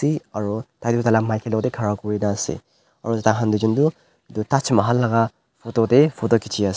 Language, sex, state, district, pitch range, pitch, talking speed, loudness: Nagamese, male, Nagaland, Dimapur, 110-120 Hz, 115 Hz, 195 wpm, -21 LUFS